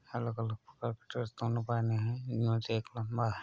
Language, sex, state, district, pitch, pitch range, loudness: Hindi, male, Uttar Pradesh, Hamirpur, 115 Hz, 115-120 Hz, -36 LUFS